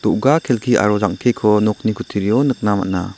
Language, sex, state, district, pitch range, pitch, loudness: Garo, male, Meghalaya, South Garo Hills, 105-125 Hz, 105 Hz, -17 LUFS